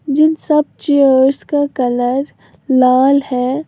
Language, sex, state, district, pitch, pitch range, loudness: Hindi, female, Uttar Pradesh, Lalitpur, 275 Hz, 255-290 Hz, -14 LUFS